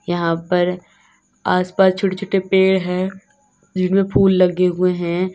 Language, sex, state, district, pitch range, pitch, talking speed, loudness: Hindi, female, Uttar Pradesh, Lalitpur, 180-190 Hz, 185 Hz, 145 wpm, -18 LUFS